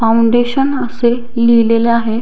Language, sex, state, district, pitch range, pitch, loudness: Marathi, female, Maharashtra, Dhule, 230-240 Hz, 235 Hz, -13 LUFS